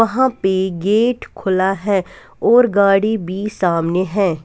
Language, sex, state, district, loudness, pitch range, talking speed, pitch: Hindi, female, Punjab, Kapurthala, -17 LUFS, 185-220 Hz, 135 wpm, 195 Hz